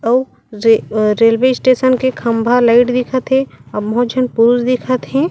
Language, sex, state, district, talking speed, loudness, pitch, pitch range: Chhattisgarhi, female, Chhattisgarh, Raigarh, 180 wpm, -14 LUFS, 245 Hz, 230-255 Hz